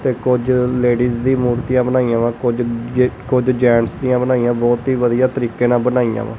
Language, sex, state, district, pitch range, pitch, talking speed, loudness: Punjabi, male, Punjab, Kapurthala, 120-125 Hz, 125 Hz, 190 wpm, -16 LUFS